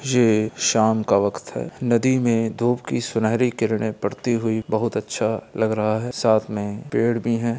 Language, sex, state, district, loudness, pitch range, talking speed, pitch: Hindi, male, Bihar, Gopalganj, -21 LUFS, 110-120 Hz, 180 wpm, 115 Hz